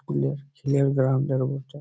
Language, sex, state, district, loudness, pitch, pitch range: Bengali, male, West Bengal, Malda, -25 LUFS, 135 Hz, 130-140 Hz